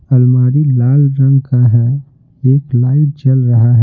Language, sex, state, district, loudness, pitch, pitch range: Hindi, male, Bihar, Patna, -11 LUFS, 130 Hz, 125-140 Hz